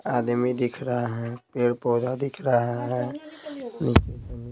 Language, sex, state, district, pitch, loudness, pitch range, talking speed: Hindi, male, Bihar, Patna, 120 Hz, -26 LUFS, 120-130 Hz, 120 wpm